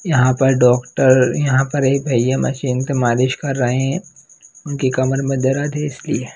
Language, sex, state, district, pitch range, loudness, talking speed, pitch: Hindi, male, Bihar, Jahanabad, 130-145 Hz, -17 LUFS, 180 wpm, 135 Hz